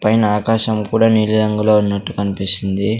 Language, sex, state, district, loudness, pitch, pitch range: Telugu, male, Andhra Pradesh, Sri Satya Sai, -16 LUFS, 105 Hz, 100-110 Hz